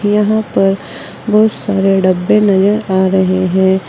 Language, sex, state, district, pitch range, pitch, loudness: Hindi, female, Uttar Pradesh, Saharanpur, 190-210 Hz, 195 Hz, -12 LUFS